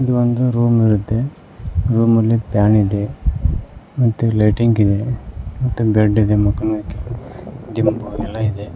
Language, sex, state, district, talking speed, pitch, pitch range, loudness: Kannada, male, Karnataka, Koppal, 115 wpm, 110 Hz, 105-115 Hz, -17 LUFS